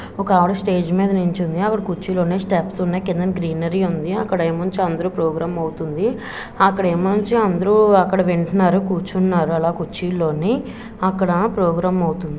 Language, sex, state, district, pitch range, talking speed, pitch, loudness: Telugu, female, Andhra Pradesh, Visakhapatnam, 170-195 Hz, 135 wpm, 185 Hz, -19 LUFS